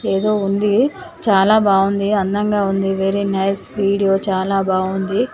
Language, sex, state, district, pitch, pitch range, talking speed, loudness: Telugu, female, Telangana, Nalgonda, 195 Hz, 195-210 Hz, 135 wpm, -17 LUFS